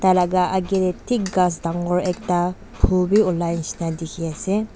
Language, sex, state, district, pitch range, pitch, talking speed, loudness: Nagamese, female, Nagaland, Dimapur, 170-190 Hz, 180 Hz, 175 wpm, -21 LUFS